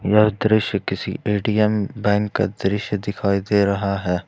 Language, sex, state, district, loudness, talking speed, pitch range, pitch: Hindi, male, Jharkhand, Ranchi, -20 LUFS, 155 wpm, 100-105 Hz, 105 Hz